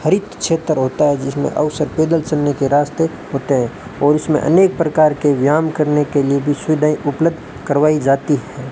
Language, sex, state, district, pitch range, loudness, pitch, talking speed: Hindi, male, Rajasthan, Bikaner, 140-155 Hz, -16 LUFS, 150 Hz, 195 wpm